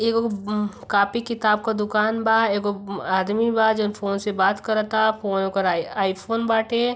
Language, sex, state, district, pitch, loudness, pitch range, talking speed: Bhojpuri, female, Uttar Pradesh, Varanasi, 210 Hz, -22 LUFS, 200-225 Hz, 175 wpm